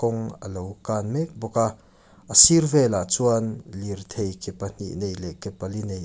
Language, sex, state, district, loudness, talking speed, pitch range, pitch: Mizo, male, Mizoram, Aizawl, -21 LUFS, 180 wpm, 95-115 Hz, 105 Hz